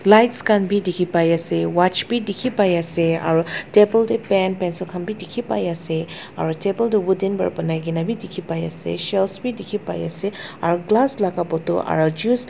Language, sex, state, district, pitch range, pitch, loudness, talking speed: Nagamese, female, Nagaland, Dimapur, 165-210 Hz, 185 Hz, -20 LUFS, 215 wpm